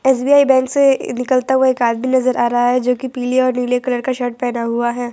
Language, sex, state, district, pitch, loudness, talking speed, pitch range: Hindi, female, Gujarat, Valsad, 250 Hz, -16 LUFS, 255 wpm, 245-260 Hz